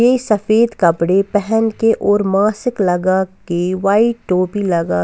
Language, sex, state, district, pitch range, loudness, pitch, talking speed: Hindi, female, Bihar, West Champaran, 185-225 Hz, -15 LUFS, 200 Hz, 130 wpm